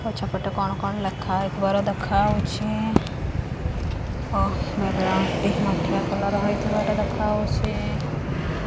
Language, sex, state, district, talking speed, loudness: Odia, female, Odisha, Khordha, 90 wpm, -24 LUFS